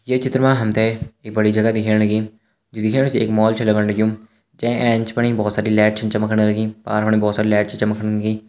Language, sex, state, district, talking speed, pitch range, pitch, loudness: Hindi, male, Uttarakhand, Uttarkashi, 245 wpm, 105-115 Hz, 110 Hz, -18 LUFS